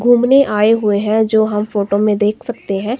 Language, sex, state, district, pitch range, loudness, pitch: Hindi, female, Himachal Pradesh, Shimla, 210-235 Hz, -14 LUFS, 215 Hz